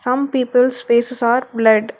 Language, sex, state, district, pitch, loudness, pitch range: English, female, Telangana, Hyderabad, 245 Hz, -16 LUFS, 235-250 Hz